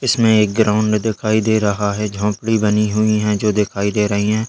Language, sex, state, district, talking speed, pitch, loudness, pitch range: Hindi, male, Bihar, Jamui, 215 wpm, 105 Hz, -17 LUFS, 105-110 Hz